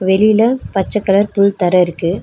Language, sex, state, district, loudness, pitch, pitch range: Tamil, female, Tamil Nadu, Nilgiris, -13 LUFS, 195 Hz, 185-210 Hz